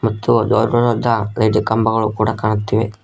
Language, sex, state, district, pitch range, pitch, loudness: Kannada, male, Karnataka, Koppal, 110-115 Hz, 110 Hz, -16 LUFS